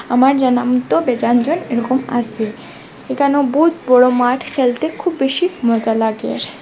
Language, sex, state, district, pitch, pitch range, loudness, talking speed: Bengali, female, Assam, Hailakandi, 250 Hz, 240-280 Hz, -16 LUFS, 135 wpm